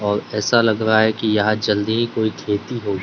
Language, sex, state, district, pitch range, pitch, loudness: Hindi, male, Gujarat, Gandhinagar, 105-110 Hz, 110 Hz, -19 LUFS